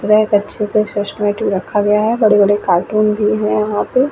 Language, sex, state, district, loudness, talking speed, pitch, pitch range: Hindi, female, Bihar, Vaishali, -15 LUFS, 190 wpm, 210 Hz, 205-215 Hz